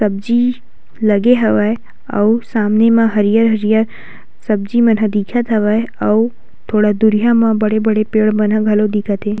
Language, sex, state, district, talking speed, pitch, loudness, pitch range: Chhattisgarhi, female, Chhattisgarh, Sukma, 145 wpm, 215 Hz, -14 LUFS, 210-230 Hz